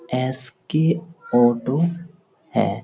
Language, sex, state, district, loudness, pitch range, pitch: Hindi, male, Bihar, Lakhisarai, -22 LUFS, 130-170 Hz, 155 Hz